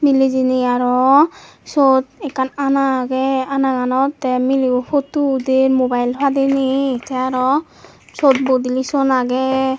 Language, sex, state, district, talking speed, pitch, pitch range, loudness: Chakma, female, Tripura, West Tripura, 125 wpm, 265 Hz, 255-275 Hz, -16 LUFS